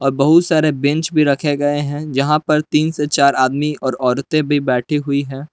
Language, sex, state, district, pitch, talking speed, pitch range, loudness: Hindi, male, Jharkhand, Palamu, 145 Hz, 215 wpm, 140-150 Hz, -16 LUFS